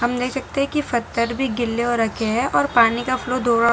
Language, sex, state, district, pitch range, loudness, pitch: Hindi, female, Gujarat, Valsad, 235-255 Hz, -20 LUFS, 240 Hz